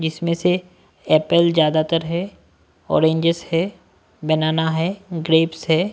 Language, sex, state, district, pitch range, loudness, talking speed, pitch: Hindi, male, Maharashtra, Washim, 160-170 Hz, -19 LUFS, 110 wpm, 165 Hz